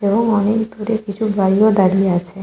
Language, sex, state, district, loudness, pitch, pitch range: Bengali, female, West Bengal, Kolkata, -16 LUFS, 205 Hz, 195-220 Hz